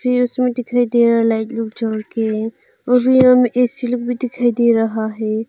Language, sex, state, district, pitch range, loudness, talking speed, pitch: Hindi, female, Arunachal Pradesh, Longding, 225-250 Hz, -16 LUFS, 220 wpm, 240 Hz